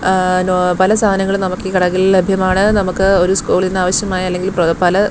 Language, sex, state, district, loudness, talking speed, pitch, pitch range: Malayalam, female, Kerala, Thiruvananthapuram, -14 LUFS, 155 wpm, 185 Hz, 185-195 Hz